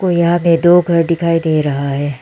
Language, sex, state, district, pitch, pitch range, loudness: Hindi, female, Arunachal Pradesh, Lower Dibang Valley, 165 Hz, 150-170 Hz, -13 LUFS